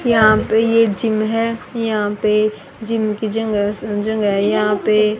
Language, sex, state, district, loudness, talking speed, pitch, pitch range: Hindi, female, Haryana, Rohtak, -17 LUFS, 150 wpm, 215 Hz, 210-225 Hz